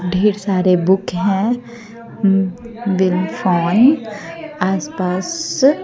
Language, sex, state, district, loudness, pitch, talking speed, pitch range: Hindi, female, Jharkhand, Deoghar, -17 LUFS, 195 Hz, 60 wpm, 185-230 Hz